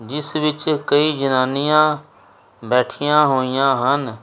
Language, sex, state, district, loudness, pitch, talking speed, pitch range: Punjabi, male, Punjab, Kapurthala, -18 LUFS, 145 Hz, 100 wpm, 130-150 Hz